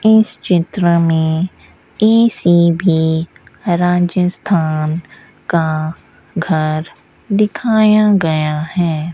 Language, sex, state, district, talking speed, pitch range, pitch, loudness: Hindi, female, Rajasthan, Bikaner, 65 wpm, 160-200 Hz, 175 Hz, -14 LUFS